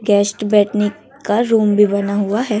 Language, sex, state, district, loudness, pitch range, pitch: Hindi, female, Chhattisgarh, Raipur, -16 LUFS, 205-215 Hz, 210 Hz